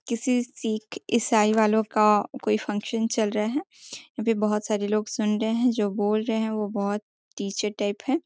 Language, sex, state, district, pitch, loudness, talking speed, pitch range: Hindi, female, Bihar, Sitamarhi, 215 Hz, -25 LUFS, 195 wpm, 210-230 Hz